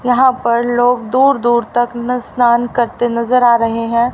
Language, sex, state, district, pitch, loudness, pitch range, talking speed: Hindi, female, Haryana, Rohtak, 240 Hz, -14 LUFS, 235-250 Hz, 175 wpm